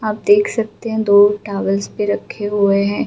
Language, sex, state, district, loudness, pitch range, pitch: Hindi, female, Bihar, Gaya, -16 LUFS, 200-220 Hz, 205 Hz